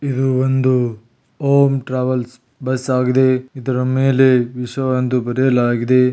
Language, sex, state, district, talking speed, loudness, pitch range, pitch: Kannada, male, Karnataka, Belgaum, 110 wpm, -17 LUFS, 125-130 Hz, 130 Hz